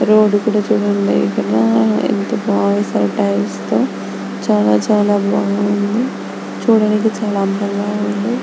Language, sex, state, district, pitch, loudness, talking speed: Telugu, female, Andhra Pradesh, Anantapur, 200 Hz, -16 LUFS, 100 wpm